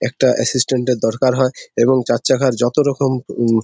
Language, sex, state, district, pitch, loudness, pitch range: Bengali, male, West Bengal, Purulia, 125 Hz, -16 LUFS, 120-130 Hz